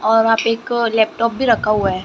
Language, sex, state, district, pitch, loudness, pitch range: Hindi, female, Maharashtra, Gondia, 225 Hz, -16 LUFS, 215-230 Hz